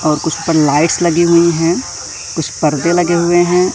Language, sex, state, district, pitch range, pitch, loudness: Hindi, male, Madhya Pradesh, Katni, 155-170 Hz, 165 Hz, -13 LUFS